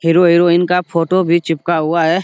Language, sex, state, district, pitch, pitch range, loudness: Hindi, male, Bihar, Jamui, 170 Hz, 165-180 Hz, -14 LUFS